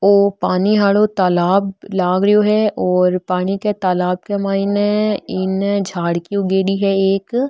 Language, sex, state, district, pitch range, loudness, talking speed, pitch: Marwari, female, Rajasthan, Nagaur, 185-200 Hz, -16 LUFS, 150 wpm, 195 Hz